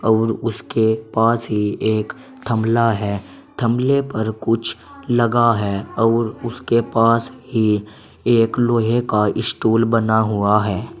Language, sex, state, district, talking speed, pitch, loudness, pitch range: Hindi, male, Uttar Pradesh, Saharanpur, 125 wpm, 115 Hz, -18 LUFS, 110-115 Hz